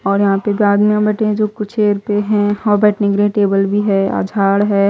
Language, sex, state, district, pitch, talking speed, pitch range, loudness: Hindi, female, Maharashtra, Mumbai Suburban, 205 Hz, 245 wpm, 200-210 Hz, -15 LUFS